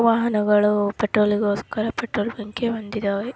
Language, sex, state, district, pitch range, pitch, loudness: Kannada, female, Karnataka, Raichur, 210-230 Hz, 210 Hz, -22 LUFS